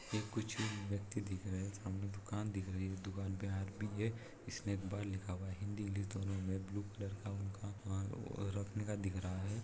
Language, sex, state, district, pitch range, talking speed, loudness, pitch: Hindi, male, Chhattisgarh, Raigarh, 95-105 Hz, 210 wpm, -43 LUFS, 100 Hz